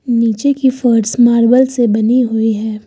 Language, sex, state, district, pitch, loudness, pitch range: Hindi, female, Uttar Pradesh, Lucknow, 235 Hz, -12 LUFS, 225-250 Hz